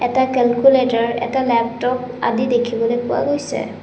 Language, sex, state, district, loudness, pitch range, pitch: Assamese, female, Assam, Sonitpur, -18 LUFS, 235-260 Hz, 245 Hz